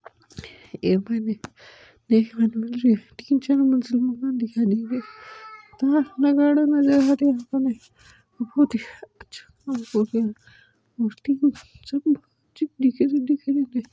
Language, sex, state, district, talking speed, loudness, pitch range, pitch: Hindi, male, Rajasthan, Nagaur, 80 wpm, -22 LUFS, 230-285 Hz, 260 Hz